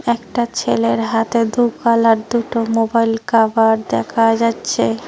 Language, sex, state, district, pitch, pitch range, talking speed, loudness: Bengali, female, West Bengal, Cooch Behar, 230 Hz, 225-235 Hz, 120 wpm, -16 LUFS